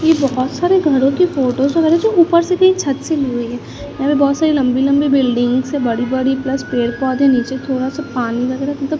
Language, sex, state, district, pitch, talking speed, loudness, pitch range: Hindi, female, Chhattisgarh, Raipur, 275 Hz, 240 wpm, -15 LUFS, 255-305 Hz